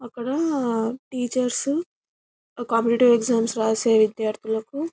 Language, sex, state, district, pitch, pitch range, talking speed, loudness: Telugu, female, Telangana, Karimnagar, 240 Hz, 225-255 Hz, 85 wpm, -22 LUFS